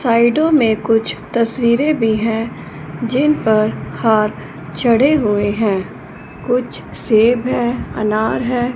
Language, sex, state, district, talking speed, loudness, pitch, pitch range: Hindi, female, Punjab, Fazilka, 115 wpm, -16 LUFS, 230 Hz, 220-245 Hz